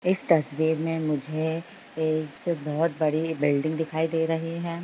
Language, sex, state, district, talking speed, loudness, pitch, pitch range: Hindi, female, Bihar, Bhagalpur, 150 wpm, -26 LUFS, 160 Hz, 155-165 Hz